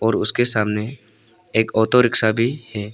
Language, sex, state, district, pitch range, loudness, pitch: Hindi, male, Arunachal Pradesh, Papum Pare, 110-120 Hz, -18 LUFS, 110 Hz